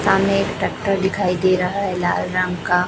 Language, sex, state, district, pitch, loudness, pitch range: Hindi, female, Chhattisgarh, Raipur, 185 Hz, -19 LUFS, 180-195 Hz